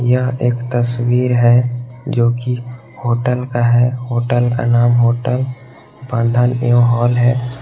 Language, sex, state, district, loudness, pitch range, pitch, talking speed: Hindi, male, Jharkhand, Garhwa, -15 LUFS, 120-125 Hz, 120 Hz, 125 wpm